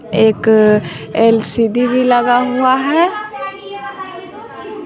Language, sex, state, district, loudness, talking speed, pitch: Hindi, male, Bihar, West Champaran, -13 LUFS, 75 wpm, 250 Hz